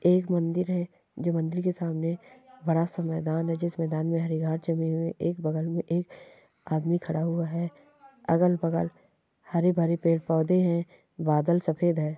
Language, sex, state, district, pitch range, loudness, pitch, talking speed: Hindi, female, Chhattisgarh, Sukma, 160-175 Hz, -28 LUFS, 170 Hz, 185 wpm